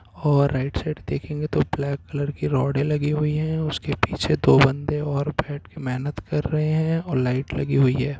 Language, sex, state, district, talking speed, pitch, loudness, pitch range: Hindi, male, Bihar, Jahanabad, 205 wpm, 145 Hz, -23 LUFS, 135-150 Hz